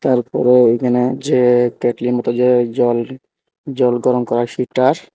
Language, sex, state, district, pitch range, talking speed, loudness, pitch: Bengali, male, Tripura, Unakoti, 120-125 Hz, 140 wpm, -15 LUFS, 125 Hz